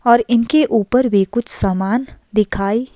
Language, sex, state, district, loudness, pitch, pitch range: Hindi, female, Himachal Pradesh, Shimla, -16 LUFS, 235 Hz, 210-240 Hz